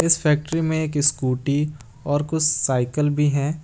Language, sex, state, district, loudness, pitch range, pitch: Hindi, male, Jharkhand, Garhwa, -21 LUFS, 140-155 Hz, 145 Hz